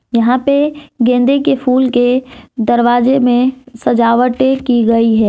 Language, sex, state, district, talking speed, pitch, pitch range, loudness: Hindi, female, Jharkhand, Deoghar, 135 wpm, 250 Hz, 240-265 Hz, -12 LUFS